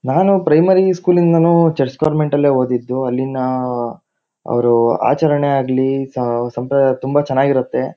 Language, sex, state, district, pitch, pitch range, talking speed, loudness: Kannada, male, Karnataka, Shimoga, 135 Hz, 125-155 Hz, 130 wpm, -15 LUFS